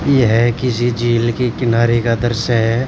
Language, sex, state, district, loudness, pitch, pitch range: Hindi, male, Haryana, Rohtak, -15 LUFS, 120 Hz, 115-120 Hz